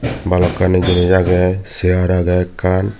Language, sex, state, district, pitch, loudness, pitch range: Chakma, male, Tripura, Dhalai, 90 Hz, -15 LUFS, 90-95 Hz